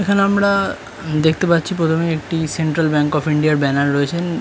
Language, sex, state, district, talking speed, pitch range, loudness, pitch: Bengali, male, West Bengal, Kolkata, 175 wpm, 150-175 Hz, -17 LUFS, 160 Hz